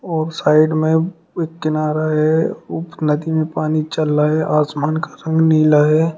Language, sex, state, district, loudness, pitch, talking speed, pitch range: Hindi, male, Uttar Pradesh, Shamli, -17 LUFS, 155 Hz, 175 wpm, 155-160 Hz